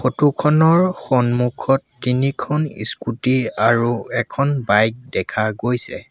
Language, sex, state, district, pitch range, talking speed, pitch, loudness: Assamese, male, Assam, Sonitpur, 120-140 Hz, 100 wpm, 125 Hz, -18 LUFS